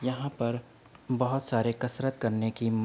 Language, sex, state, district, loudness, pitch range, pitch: Hindi, male, Uttar Pradesh, Budaun, -30 LUFS, 115-130 Hz, 120 Hz